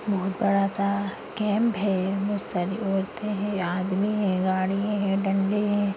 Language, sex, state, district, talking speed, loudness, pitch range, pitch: Hindi, female, Chhattisgarh, Bastar, 150 wpm, -26 LUFS, 195-205 Hz, 200 Hz